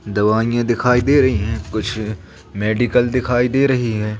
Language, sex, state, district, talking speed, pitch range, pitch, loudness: Hindi, male, Madhya Pradesh, Katni, 155 wpm, 105-125 Hz, 110 Hz, -17 LUFS